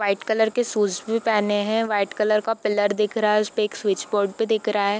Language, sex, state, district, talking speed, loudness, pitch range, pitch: Hindi, female, Bihar, East Champaran, 275 wpm, -22 LUFS, 205-220 Hz, 210 Hz